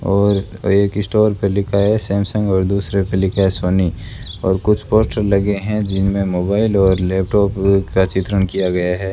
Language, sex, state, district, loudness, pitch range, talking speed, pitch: Hindi, male, Rajasthan, Bikaner, -17 LUFS, 95-100 Hz, 175 wpm, 100 Hz